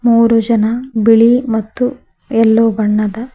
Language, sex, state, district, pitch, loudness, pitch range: Kannada, female, Karnataka, Koppal, 230 Hz, -13 LUFS, 220-240 Hz